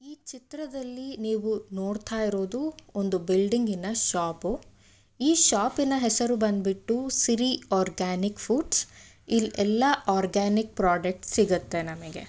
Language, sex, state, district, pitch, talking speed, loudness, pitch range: Kannada, female, Karnataka, Bellary, 215 Hz, 110 wpm, -26 LUFS, 190-250 Hz